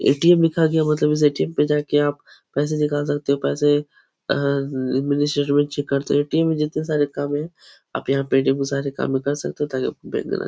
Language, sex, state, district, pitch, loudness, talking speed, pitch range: Hindi, male, Uttar Pradesh, Etah, 145 Hz, -21 LUFS, 215 wpm, 140-150 Hz